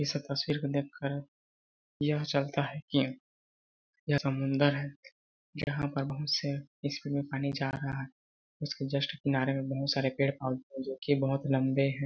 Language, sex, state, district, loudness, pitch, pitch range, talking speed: Hindi, male, Chhattisgarh, Balrampur, -32 LUFS, 140 Hz, 135-145 Hz, 170 wpm